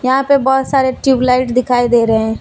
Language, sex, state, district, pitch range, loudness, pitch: Hindi, female, Jharkhand, Deoghar, 245-265 Hz, -13 LUFS, 255 Hz